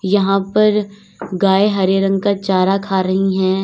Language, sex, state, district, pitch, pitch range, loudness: Hindi, female, Uttar Pradesh, Lalitpur, 195 Hz, 190-200 Hz, -15 LUFS